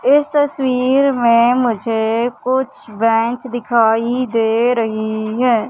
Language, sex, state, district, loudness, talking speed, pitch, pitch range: Hindi, male, Madhya Pradesh, Katni, -16 LUFS, 105 wpm, 240 Hz, 225-255 Hz